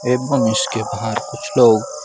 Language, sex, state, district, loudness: Hindi, male, Chhattisgarh, Bilaspur, -17 LUFS